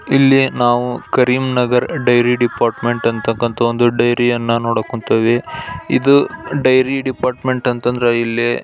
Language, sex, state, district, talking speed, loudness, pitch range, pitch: Kannada, male, Karnataka, Belgaum, 125 wpm, -15 LUFS, 120-130 Hz, 120 Hz